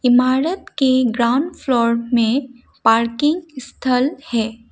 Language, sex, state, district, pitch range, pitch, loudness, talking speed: Hindi, female, Assam, Kamrup Metropolitan, 235-275 Hz, 255 Hz, -18 LUFS, 100 wpm